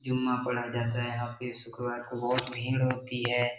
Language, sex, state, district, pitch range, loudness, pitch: Hindi, male, Bihar, Jahanabad, 120-125 Hz, -31 LUFS, 120 Hz